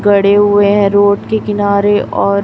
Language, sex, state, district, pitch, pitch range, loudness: Hindi, female, Chhattisgarh, Raipur, 205 Hz, 200-205 Hz, -11 LUFS